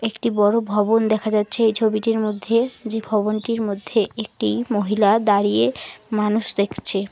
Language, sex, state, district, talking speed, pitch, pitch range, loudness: Bengali, female, West Bengal, Alipurduar, 135 wpm, 215 Hz, 210-225 Hz, -20 LUFS